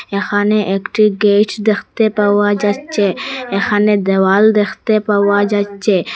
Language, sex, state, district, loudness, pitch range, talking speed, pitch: Bengali, female, Assam, Hailakandi, -14 LUFS, 200-215 Hz, 105 wpm, 205 Hz